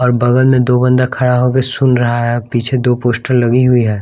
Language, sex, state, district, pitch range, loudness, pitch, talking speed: Hindi, male, Bihar, West Champaran, 120-125 Hz, -12 LUFS, 125 Hz, 240 wpm